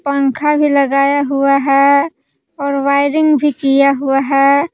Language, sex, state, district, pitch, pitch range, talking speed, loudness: Hindi, female, Jharkhand, Palamu, 280 Hz, 275-285 Hz, 140 wpm, -13 LUFS